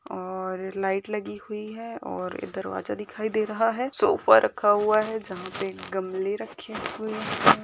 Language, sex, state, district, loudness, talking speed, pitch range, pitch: Hindi, female, Uttarakhand, Uttarkashi, -26 LUFS, 175 wpm, 190-215 Hz, 210 Hz